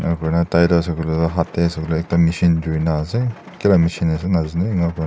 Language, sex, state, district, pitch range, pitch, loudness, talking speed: Nagamese, male, Nagaland, Dimapur, 80-85 Hz, 85 Hz, -18 LUFS, 215 wpm